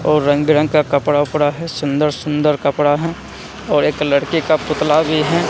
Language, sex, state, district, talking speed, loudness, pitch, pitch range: Hindi, male, Bihar, Katihar, 195 wpm, -16 LUFS, 150 Hz, 145-155 Hz